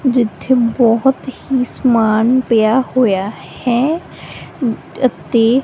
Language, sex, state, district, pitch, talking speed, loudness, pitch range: Punjabi, female, Punjab, Kapurthala, 245 Hz, 95 wpm, -15 LUFS, 225-255 Hz